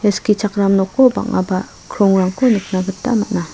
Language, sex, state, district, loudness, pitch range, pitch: Garo, female, Meghalaya, South Garo Hills, -16 LUFS, 190-215 Hz, 200 Hz